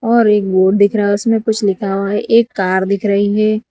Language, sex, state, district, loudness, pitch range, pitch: Hindi, female, Gujarat, Valsad, -14 LUFS, 195-220 Hz, 205 Hz